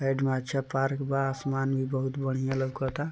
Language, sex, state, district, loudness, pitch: Bhojpuri, male, Bihar, East Champaran, -29 LUFS, 135 Hz